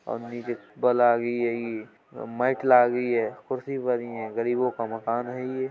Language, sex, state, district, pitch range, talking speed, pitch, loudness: Hindi, male, Uttar Pradesh, Budaun, 115-125 Hz, 180 wpm, 120 Hz, -26 LUFS